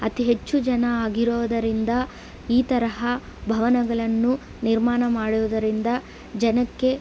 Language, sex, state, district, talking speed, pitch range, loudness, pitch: Kannada, female, Karnataka, Belgaum, 95 wpm, 225-245 Hz, -23 LUFS, 235 Hz